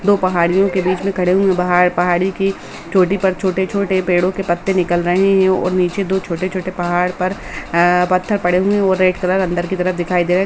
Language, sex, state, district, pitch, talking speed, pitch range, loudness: Hindi, female, Bihar, Samastipur, 185 Hz, 235 wpm, 180-190 Hz, -16 LUFS